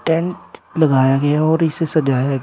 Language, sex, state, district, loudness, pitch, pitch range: Hindi, male, Uttar Pradesh, Shamli, -17 LUFS, 155 Hz, 135-165 Hz